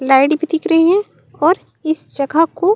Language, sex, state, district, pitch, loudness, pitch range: Chhattisgarhi, female, Chhattisgarh, Raigarh, 325 Hz, -15 LUFS, 295-335 Hz